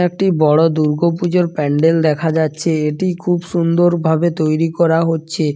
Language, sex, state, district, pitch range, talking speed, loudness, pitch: Bengali, male, West Bengal, Dakshin Dinajpur, 155-175 Hz, 140 wpm, -15 LUFS, 165 Hz